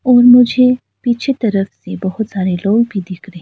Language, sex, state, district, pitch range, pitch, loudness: Hindi, female, Arunachal Pradesh, Lower Dibang Valley, 195-245 Hz, 220 Hz, -14 LUFS